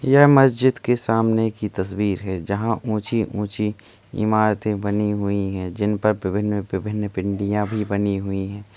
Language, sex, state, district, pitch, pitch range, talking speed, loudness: Hindi, male, Uttar Pradesh, Muzaffarnagar, 105 Hz, 100-110 Hz, 155 wpm, -21 LUFS